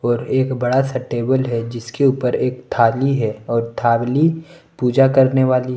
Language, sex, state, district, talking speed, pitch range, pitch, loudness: Hindi, male, Jharkhand, Palamu, 175 wpm, 120-135 Hz, 125 Hz, -18 LUFS